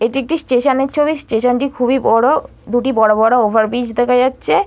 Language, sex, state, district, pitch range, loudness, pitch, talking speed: Bengali, female, West Bengal, Purulia, 230-270 Hz, -15 LUFS, 245 Hz, 195 wpm